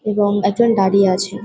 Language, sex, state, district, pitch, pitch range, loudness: Bengali, female, West Bengal, Kolkata, 200 Hz, 195-210 Hz, -15 LUFS